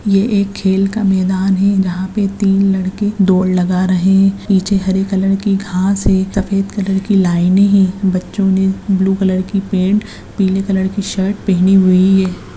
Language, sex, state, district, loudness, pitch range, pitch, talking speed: Hindi, female, Bihar, Madhepura, -14 LUFS, 190-200 Hz, 195 Hz, 180 wpm